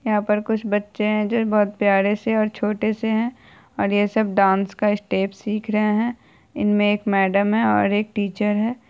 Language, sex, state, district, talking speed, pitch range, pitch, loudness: Hindi, female, Bihar, Saharsa, 200 wpm, 205-220 Hz, 210 Hz, -21 LUFS